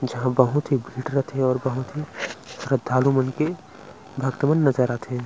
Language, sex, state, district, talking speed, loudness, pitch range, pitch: Chhattisgarhi, male, Chhattisgarh, Rajnandgaon, 170 wpm, -23 LUFS, 130-140 Hz, 130 Hz